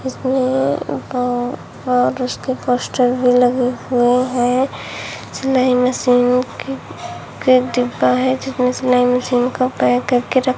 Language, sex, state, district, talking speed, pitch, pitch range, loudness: Hindi, female, Uttar Pradesh, Shamli, 130 wpm, 250 Hz, 245-255 Hz, -17 LUFS